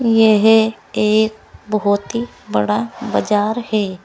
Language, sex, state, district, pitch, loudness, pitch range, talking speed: Hindi, female, Uttar Pradesh, Saharanpur, 215 Hz, -17 LUFS, 205-220 Hz, 105 wpm